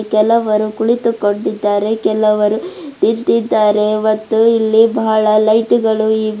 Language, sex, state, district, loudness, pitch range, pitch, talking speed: Kannada, female, Karnataka, Bidar, -14 LUFS, 215-225 Hz, 220 Hz, 95 wpm